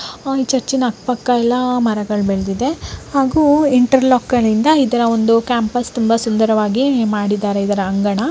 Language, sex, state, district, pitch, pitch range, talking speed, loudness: Kannada, male, Karnataka, Mysore, 240 Hz, 215-260 Hz, 130 wpm, -15 LUFS